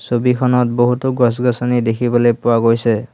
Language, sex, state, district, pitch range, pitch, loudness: Assamese, male, Assam, Hailakandi, 120-125 Hz, 120 Hz, -15 LUFS